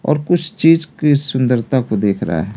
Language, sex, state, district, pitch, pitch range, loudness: Hindi, male, Delhi, New Delhi, 135 Hz, 110-160 Hz, -15 LUFS